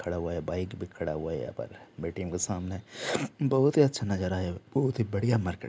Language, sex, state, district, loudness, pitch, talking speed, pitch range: Hindi, male, Jharkhand, Jamtara, -30 LUFS, 100 Hz, 245 wpm, 90-120 Hz